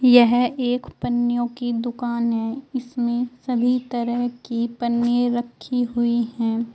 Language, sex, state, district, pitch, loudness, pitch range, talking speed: Hindi, female, Uttar Pradesh, Shamli, 240 Hz, -22 LUFS, 235-245 Hz, 125 wpm